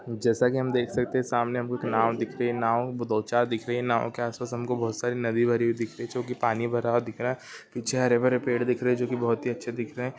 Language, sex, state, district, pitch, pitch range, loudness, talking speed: Hindi, male, Uttar Pradesh, Ghazipur, 120 Hz, 115-125 Hz, -27 LUFS, 295 wpm